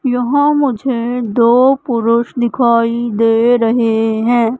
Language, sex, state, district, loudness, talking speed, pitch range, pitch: Hindi, female, Madhya Pradesh, Katni, -13 LUFS, 105 wpm, 230-245 Hz, 235 Hz